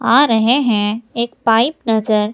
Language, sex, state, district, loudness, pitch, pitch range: Hindi, female, Himachal Pradesh, Shimla, -15 LUFS, 225 Hz, 220-240 Hz